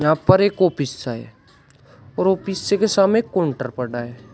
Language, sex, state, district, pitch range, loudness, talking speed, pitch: Hindi, male, Uttar Pradesh, Shamli, 125-190 Hz, -19 LUFS, 180 wpm, 140 Hz